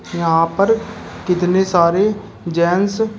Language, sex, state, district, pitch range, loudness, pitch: Hindi, male, Uttar Pradesh, Shamli, 170-205 Hz, -16 LUFS, 185 Hz